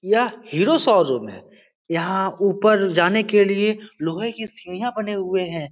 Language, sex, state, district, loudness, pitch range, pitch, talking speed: Hindi, male, Bihar, Supaul, -20 LUFS, 185-220 Hz, 205 Hz, 155 wpm